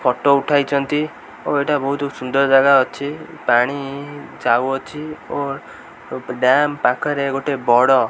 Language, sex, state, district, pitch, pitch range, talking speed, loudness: Odia, male, Odisha, Khordha, 140 Hz, 130-145 Hz, 125 wpm, -18 LUFS